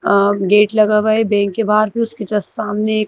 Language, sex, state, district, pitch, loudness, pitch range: Hindi, female, Madhya Pradesh, Bhopal, 210 Hz, -15 LUFS, 205-215 Hz